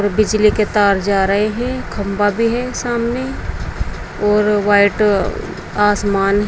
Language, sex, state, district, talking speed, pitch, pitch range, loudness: Hindi, female, Uttar Pradesh, Saharanpur, 130 wpm, 205 Hz, 195-215 Hz, -16 LUFS